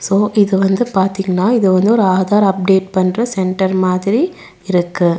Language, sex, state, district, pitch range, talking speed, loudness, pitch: Tamil, female, Tamil Nadu, Nilgiris, 185-205 Hz, 150 wpm, -14 LUFS, 190 Hz